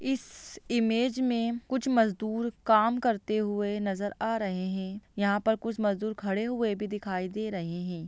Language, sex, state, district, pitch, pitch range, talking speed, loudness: Hindi, female, Bihar, Lakhisarai, 215 Hz, 200-230 Hz, 170 wpm, -29 LUFS